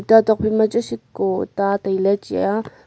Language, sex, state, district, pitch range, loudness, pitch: Wancho, female, Arunachal Pradesh, Longding, 195-220 Hz, -19 LUFS, 200 Hz